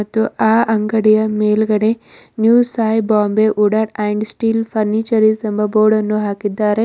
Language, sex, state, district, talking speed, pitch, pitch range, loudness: Kannada, female, Karnataka, Bidar, 130 wpm, 215 Hz, 210-220 Hz, -15 LUFS